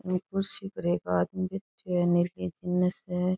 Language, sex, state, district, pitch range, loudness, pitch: Rajasthani, female, Rajasthan, Churu, 175-185 Hz, -29 LUFS, 180 Hz